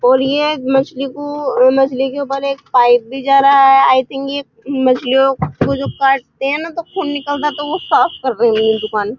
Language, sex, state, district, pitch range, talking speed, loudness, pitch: Hindi, female, Uttar Pradesh, Muzaffarnagar, 255-285 Hz, 220 wpm, -14 LUFS, 270 Hz